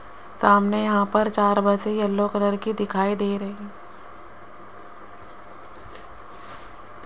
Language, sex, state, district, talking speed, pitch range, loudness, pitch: Hindi, female, Rajasthan, Jaipur, 100 wpm, 200-210 Hz, -22 LUFS, 205 Hz